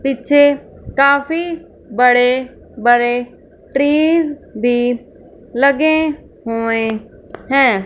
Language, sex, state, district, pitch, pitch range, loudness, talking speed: Hindi, female, Punjab, Fazilka, 260 Hz, 240-290 Hz, -15 LUFS, 70 wpm